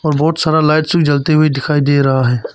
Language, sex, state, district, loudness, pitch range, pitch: Hindi, male, Arunachal Pradesh, Papum Pare, -13 LUFS, 140-155 Hz, 150 Hz